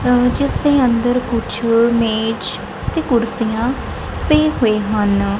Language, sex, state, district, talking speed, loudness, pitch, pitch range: Punjabi, female, Punjab, Kapurthala, 110 wpm, -17 LUFS, 235 Hz, 225-250 Hz